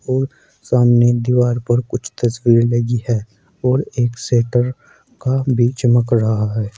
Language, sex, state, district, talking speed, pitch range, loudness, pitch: Hindi, male, Uttar Pradesh, Saharanpur, 140 wpm, 120-125 Hz, -17 LUFS, 120 Hz